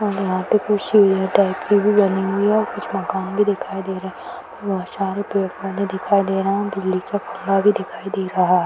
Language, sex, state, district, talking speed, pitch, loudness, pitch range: Hindi, female, Bihar, Purnia, 215 wpm, 195 Hz, -20 LUFS, 190-205 Hz